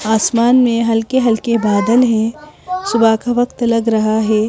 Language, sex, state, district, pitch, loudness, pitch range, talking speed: Hindi, female, Madhya Pradesh, Bhopal, 230 Hz, -14 LUFS, 220-245 Hz, 145 wpm